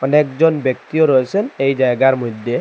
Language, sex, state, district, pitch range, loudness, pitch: Bengali, male, Assam, Hailakandi, 130-150 Hz, -16 LUFS, 135 Hz